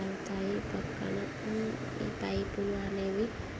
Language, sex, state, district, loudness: Telugu, female, Andhra Pradesh, Guntur, -35 LUFS